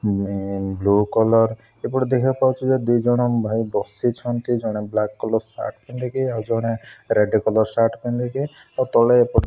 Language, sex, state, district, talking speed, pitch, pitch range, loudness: Odia, male, Odisha, Malkangiri, 140 wpm, 115 Hz, 110-125 Hz, -21 LUFS